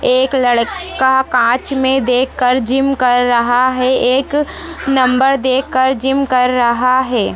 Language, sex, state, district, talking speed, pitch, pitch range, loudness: Hindi, female, Chhattisgarh, Jashpur, 145 wpm, 260 Hz, 250-265 Hz, -14 LUFS